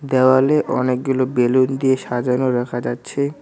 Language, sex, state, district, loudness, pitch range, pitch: Bengali, male, West Bengal, Cooch Behar, -18 LUFS, 125-135 Hz, 130 Hz